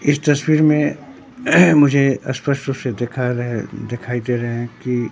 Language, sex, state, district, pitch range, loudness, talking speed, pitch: Hindi, male, Bihar, Katihar, 120-145 Hz, -18 LUFS, 190 wpm, 130 Hz